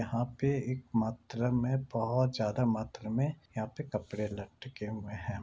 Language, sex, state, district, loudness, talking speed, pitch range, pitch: Hindi, male, Bihar, Jamui, -34 LUFS, 175 wpm, 110-130 Hz, 115 Hz